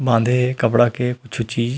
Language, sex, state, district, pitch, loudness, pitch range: Chhattisgarhi, male, Chhattisgarh, Rajnandgaon, 120 Hz, -19 LUFS, 115-125 Hz